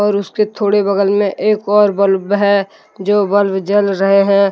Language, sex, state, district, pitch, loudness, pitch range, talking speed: Hindi, male, Jharkhand, Deoghar, 200 Hz, -14 LUFS, 195-205 Hz, 185 wpm